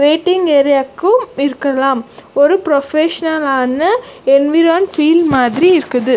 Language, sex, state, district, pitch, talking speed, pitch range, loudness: Tamil, female, Karnataka, Bangalore, 305 Hz, 95 wpm, 275-340 Hz, -13 LUFS